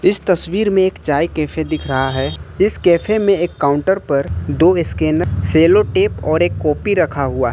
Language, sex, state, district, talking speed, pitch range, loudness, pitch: Hindi, male, Jharkhand, Ranchi, 200 wpm, 145-195 Hz, -16 LUFS, 170 Hz